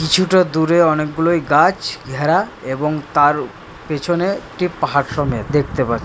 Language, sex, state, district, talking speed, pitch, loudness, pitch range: Bengali, male, West Bengal, Purulia, 130 wpm, 155 Hz, -17 LUFS, 145-170 Hz